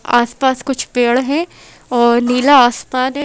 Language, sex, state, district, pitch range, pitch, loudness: Hindi, female, Madhya Pradesh, Bhopal, 240-270 Hz, 255 Hz, -14 LUFS